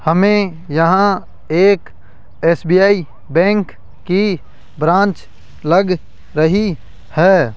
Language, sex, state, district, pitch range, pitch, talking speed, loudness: Hindi, male, Rajasthan, Jaipur, 155-195 Hz, 175 Hz, 80 wpm, -15 LUFS